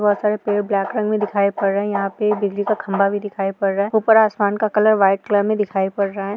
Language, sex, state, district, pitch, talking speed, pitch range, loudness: Hindi, female, Uttar Pradesh, Jyotiba Phule Nagar, 205 Hz, 300 wpm, 200-210 Hz, -19 LUFS